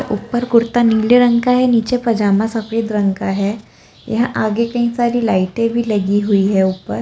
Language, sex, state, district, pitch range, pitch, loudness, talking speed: Kumaoni, female, Uttarakhand, Tehri Garhwal, 205-235 Hz, 225 Hz, -16 LUFS, 190 wpm